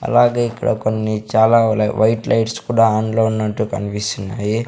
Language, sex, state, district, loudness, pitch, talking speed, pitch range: Telugu, male, Andhra Pradesh, Sri Satya Sai, -17 LUFS, 110 Hz, 155 wpm, 105-115 Hz